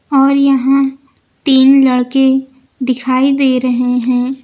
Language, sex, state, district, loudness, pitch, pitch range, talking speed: Hindi, female, Uttar Pradesh, Lucknow, -12 LUFS, 265 Hz, 255-275 Hz, 110 wpm